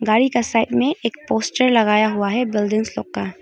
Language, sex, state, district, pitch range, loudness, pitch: Hindi, female, Arunachal Pradesh, Longding, 210-245 Hz, -19 LUFS, 225 Hz